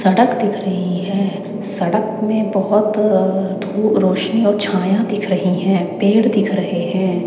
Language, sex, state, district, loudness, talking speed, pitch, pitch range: Hindi, female, Chandigarh, Chandigarh, -17 LUFS, 150 wpm, 200 Hz, 190-210 Hz